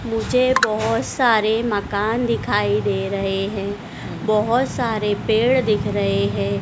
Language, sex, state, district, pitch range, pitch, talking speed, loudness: Hindi, female, Madhya Pradesh, Dhar, 195-230 Hz, 215 Hz, 125 wpm, -20 LUFS